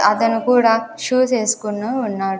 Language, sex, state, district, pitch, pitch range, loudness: Telugu, female, Andhra Pradesh, Sri Satya Sai, 225 Hz, 210-245 Hz, -18 LUFS